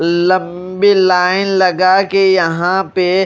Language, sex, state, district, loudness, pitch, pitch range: Hindi, male, Odisha, Malkangiri, -12 LUFS, 185 Hz, 180-190 Hz